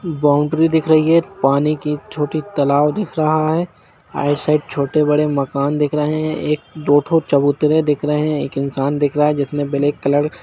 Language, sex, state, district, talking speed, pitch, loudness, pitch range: Hindi, female, Jharkhand, Jamtara, 200 wpm, 150 Hz, -17 LUFS, 145-155 Hz